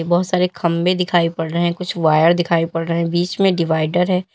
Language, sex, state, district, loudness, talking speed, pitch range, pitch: Hindi, female, Uttar Pradesh, Lalitpur, -17 LUFS, 235 wpm, 165-180 Hz, 170 Hz